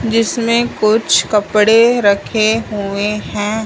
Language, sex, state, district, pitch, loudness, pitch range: Hindi, male, Punjab, Fazilka, 215 Hz, -14 LUFS, 210-230 Hz